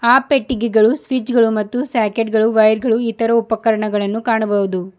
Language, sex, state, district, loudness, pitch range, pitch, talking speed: Kannada, female, Karnataka, Bidar, -16 LUFS, 215-240 Hz, 225 Hz, 145 wpm